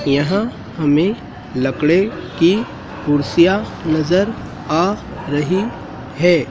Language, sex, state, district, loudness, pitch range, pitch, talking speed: Hindi, male, Madhya Pradesh, Dhar, -17 LUFS, 145-190 Hz, 170 Hz, 85 wpm